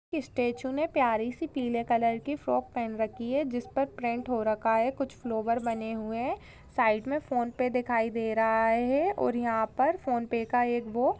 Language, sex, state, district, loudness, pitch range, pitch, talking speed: Hindi, female, Maharashtra, Sindhudurg, -29 LUFS, 225-265 Hz, 240 Hz, 210 wpm